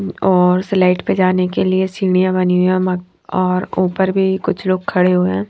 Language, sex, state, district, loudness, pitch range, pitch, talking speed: Hindi, female, Haryana, Charkhi Dadri, -16 LUFS, 180-185 Hz, 185 Hz, 195 wpm